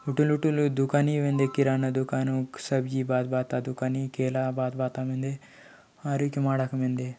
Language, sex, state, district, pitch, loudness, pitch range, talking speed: Halbi, male, Chhattisgarh, Bastar, 130 Hz, -27 LUFS, 130-140 Hz, 135 wpm